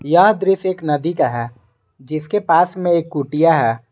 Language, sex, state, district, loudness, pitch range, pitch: Hindi, male, Jharkhand, Garhwa, -17 LUFS, 125-175 Hz, 155 Hz